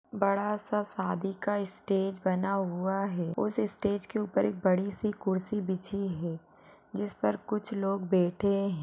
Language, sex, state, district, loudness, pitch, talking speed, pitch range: Hindi, female, Maharashtra, Sindhudurg, -31 LUFS, 195 Hz, 150 wpm, 185-205 Hz